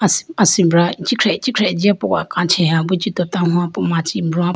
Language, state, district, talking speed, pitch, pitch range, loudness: Idu Mishmi, Arunachal Pradesh, Lower Dibang Valley, 170 wpm, 180 Hz, 170-205 Hz, -16 LUFS